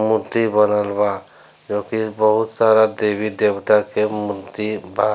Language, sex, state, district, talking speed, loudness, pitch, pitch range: Bhojpuri, male, Bihar, Gopalganj, 130 wpm, -18 LUFS, 105 Hz, 105-110 Hz